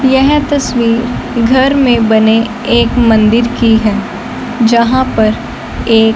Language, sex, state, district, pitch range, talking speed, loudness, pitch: Hindi, male, Punjab, Fazilka, 225-250 Hz, 115 wpm, -11 LUFS, 235 Hz